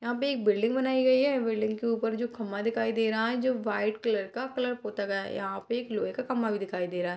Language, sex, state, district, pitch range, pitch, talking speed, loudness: Hindi, female, Bihar, Purnia, 210-250 Hz, 225 Hz, 290 wpm, -29 LUFS